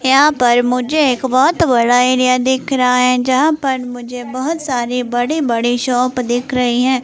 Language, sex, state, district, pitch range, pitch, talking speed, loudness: Hindi, female, Himachal Pradesh, Shimla, 245-260 Hz, 250 Hz, 180 wpm, -14 LUFS